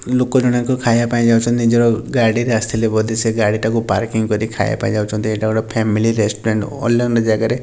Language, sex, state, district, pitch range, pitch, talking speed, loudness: Odia, male, Odisha, Nuapada, 110-120 Hz, 115 Hz, 190 wpm, -16 LUFS